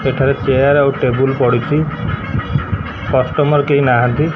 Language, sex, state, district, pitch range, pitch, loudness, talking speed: Odia, female, Odisha, Khordha, 125-145 Hz, 135 Hz, -15 LUFS, 110 wpm